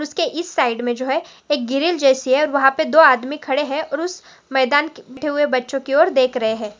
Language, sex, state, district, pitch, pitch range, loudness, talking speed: Hindi, female, Maharashtra, Pune, 275 Hz, 260-300 Hz, -18 LUFS, 245 wpm